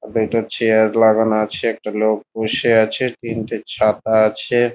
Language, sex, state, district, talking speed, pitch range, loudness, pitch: Bengali, male, West Bengal, Dakshin Dinajpur, 140 wpm, 110-115 Hz, -17 LUFS, 110 Hz